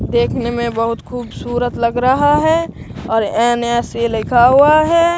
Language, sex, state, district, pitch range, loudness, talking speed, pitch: Hindi, male, Bihar, Katihar, 230-290 Hz, -15 LUFS, 150 wpm, 240 Hz